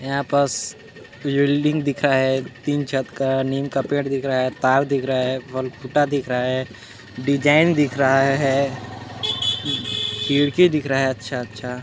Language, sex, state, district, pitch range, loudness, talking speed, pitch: Hindi, male, Chhattisgarh, Balrampur, 125-140 Hz, -20 LUFS, 165 wpm, 135 Hz